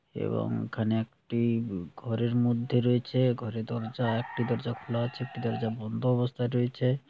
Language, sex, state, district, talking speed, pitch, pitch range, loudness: Bengali, male, West Bengal, Jhargram, 150 wpm, 120 Hz, 115-125 Hz, -30 LUFS